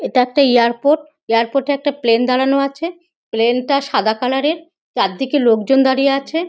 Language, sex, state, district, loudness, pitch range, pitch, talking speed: Bengali, female, West Bengal, North 24 Parganas, -16 LUFS, 250-290 Hz, 275 Hz, 175 wpm